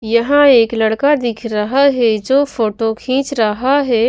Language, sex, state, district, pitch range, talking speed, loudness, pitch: Hindi, female, Himachal Pradesh, Shimla, 225-275 Hz, 160 wpm, -14 LUFS, 240 Hz